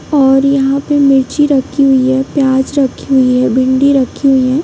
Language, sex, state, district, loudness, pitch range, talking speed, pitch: Hindi, female, Bihar, Sitamarhi, -11 LUFS, 260-275 Hz, 195 wpm, 270 Hz